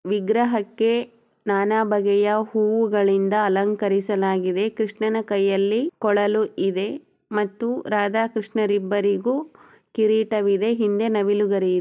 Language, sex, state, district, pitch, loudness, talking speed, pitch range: Kannada, female, Karnataka, Chamarajanagar, 210 Hz, -21 LUFS, 65 wpm, 200-220 Hz